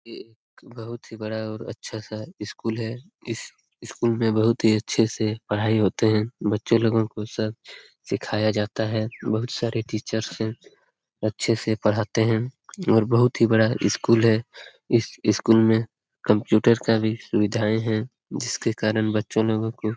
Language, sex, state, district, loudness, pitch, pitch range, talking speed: Hindi, male, Bihar, Lakhisarai, -23 LUFS, 110 Hz, 110-115 Hz, 160 wpm